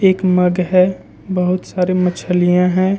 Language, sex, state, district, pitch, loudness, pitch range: Hindi, male, Jharkhand, Ranchi, 180 Hz, -15 LUFS, 180-185 Hz